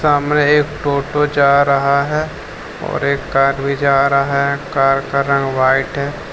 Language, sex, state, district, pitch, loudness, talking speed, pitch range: Hindi, male, Jharkhand, Deoghar, 140 Hz, -15 LUFS, 170 wpm, 140-145 Hz